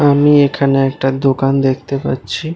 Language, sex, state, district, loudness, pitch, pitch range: Bengali, male, West Bengal, Malda, -14 LUFS, 135 Hz, 135-145 Hz